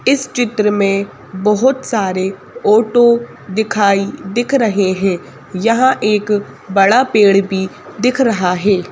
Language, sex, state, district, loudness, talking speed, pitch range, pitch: Hindi, female, Madhya Pradesh, Bhopal, -14 LUFS, 120 wpm, 195-235 Hz, 210 Hz